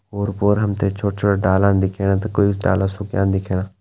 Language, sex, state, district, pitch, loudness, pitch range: Hindi, male, Uttarakhand, Tehri Garhwal, 100 Hz, -19 LUFS, 95-100 Hz